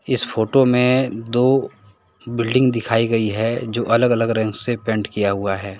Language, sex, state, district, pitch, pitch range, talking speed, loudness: Hindi, male, Jharkhand, Deoghar, 115 Hz, 105-120 Hz, 175 wpm, -19 LUFS